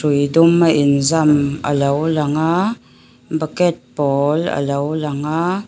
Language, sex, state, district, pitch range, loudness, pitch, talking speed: Mizo, female, Mizoram, Aizawl, 140-165 Hz, -17 LUFS, 150 Hz, 105 wpm